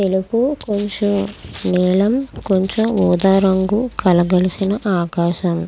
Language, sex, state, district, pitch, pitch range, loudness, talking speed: Telugu, female, Andhra Pradesh, Krishna, 190 Hz, 180-205 Hz, -17 LUFS, 95 wpm